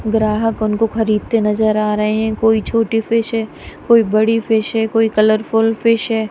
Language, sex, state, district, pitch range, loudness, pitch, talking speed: Hindi, female, Punjab, Kapurthala, 215-225 Hz, -15 LUFS, 220 Hz, 180 wpm